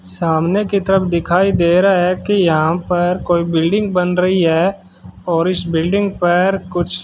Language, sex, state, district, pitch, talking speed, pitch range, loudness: Hindi, male, Rajasthan, Bikaner, 175 Hz, 180 wpm, 165-190 Hz, -15 LUFS